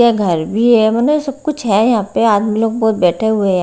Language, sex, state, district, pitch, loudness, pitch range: Hindi, female, Haryana, Rohtak, 220 Hz, -14 LUFS, 205-235 Hz